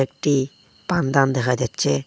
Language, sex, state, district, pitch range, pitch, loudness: Bengali, male, Assam, Hailakandi, 125-140 Hz, 135 Hz, -21 LUFS